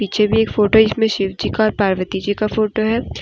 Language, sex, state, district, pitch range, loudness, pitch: Hindi, female, Jharkhand, Deoghar, 205-220 Hz, -17 LUFS, 215 Hz